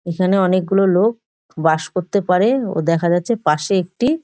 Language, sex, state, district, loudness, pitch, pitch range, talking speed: Bengali, male, West Bengal, Dakshin Dinajpur, -17 LUFS, 185 Hz, 170-200 Hz, 155 wpm